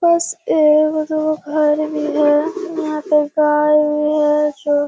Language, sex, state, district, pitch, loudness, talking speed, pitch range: Hindi, female, Bihar, Kishanganj, 300 Hz, -16 LUFS, 160 wpm, 300-310 Hz